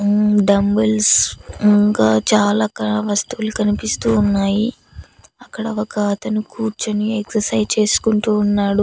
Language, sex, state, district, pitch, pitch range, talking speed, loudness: Telugu, female, Andhra Pradesh, Annamaya, 210 Hz, 205-215 Hz, 95 wpm, -17 LUFS